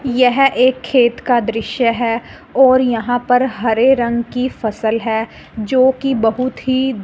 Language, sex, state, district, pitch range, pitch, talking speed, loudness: Hindi, female, Punjab, Fazilka, 230-260 Hz, 245 Hz, 155 wpm, -15 LUFS